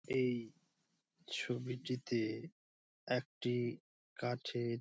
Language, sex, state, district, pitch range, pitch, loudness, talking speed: Bengali, male, West Bengal, Dakshin Dinajpur, 115-130 Hz, 125 Hz, -40 LUFS, 50 wpm